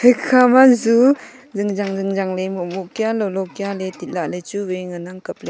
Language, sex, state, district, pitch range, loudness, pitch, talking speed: Wancho, female, Arunachal Pradesh, Longding, 185-240 Hz, -18 LUFS, 200 Hz, 175 wpm